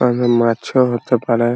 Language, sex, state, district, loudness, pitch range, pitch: Bengali, male, West Bengal, Purulia, -16 LUFS, 115-125 Hz, 120 Hz